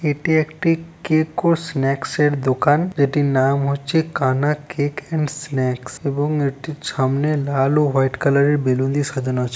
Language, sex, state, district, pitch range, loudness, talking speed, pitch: Bengali, male, West Bengal, Purulia, 135-155 Hz, -19 LUFS, 155 wpm, 145 Hz